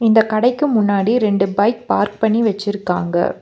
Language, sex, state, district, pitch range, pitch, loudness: Tamil, female, Tamil Nadu, Nilgiris, 200-230 Hz, 215 Hz, -17 LUFS